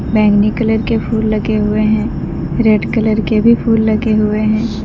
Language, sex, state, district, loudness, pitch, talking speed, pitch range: Hindi, female, Uttar Pradesh, Lalitpur, -14 LUFS, 215 Hz, 185 wpm, 215-220 Hz